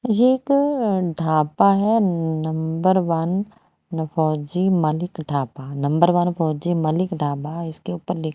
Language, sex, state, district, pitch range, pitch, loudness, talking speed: Hindi, female, Haryana, Rohtak, 155-185 Hz, 170 Hz, -21 LUFS, 120 wpm